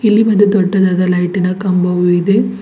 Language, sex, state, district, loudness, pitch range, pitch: Kannada, female, Karnataka, Bidar, -13 LUFS, 180-205 Hz, 190 Hz